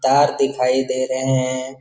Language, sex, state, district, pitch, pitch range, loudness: Hindi, male, Bihar, Jamui, 130 Hz, 130-135 Hz, -19 LUFS